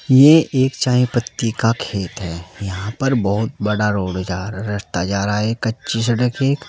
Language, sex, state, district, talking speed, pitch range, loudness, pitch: Hindi, male, Uttar Pradesh, Saharanpur, 195 wpm, 100-125 Hz, -18 LUFS, 110 Hz